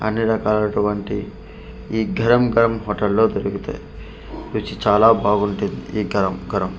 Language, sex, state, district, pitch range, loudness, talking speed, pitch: Telugu, male, Andhra Pradesh, Manyam, 100-110 Hz, -19 LUFS, 115 wpm, 105 Hz